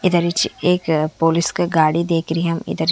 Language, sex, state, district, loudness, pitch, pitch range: Hindi, female, Haryana, Charkhi Dadri, -18 LUFS, 165 Hz, 160-170 Hz